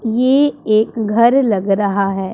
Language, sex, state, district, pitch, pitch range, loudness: Hindi, female, Punjab, Pathankot, 220 Hz, 200-245 Hz, -15 LUFS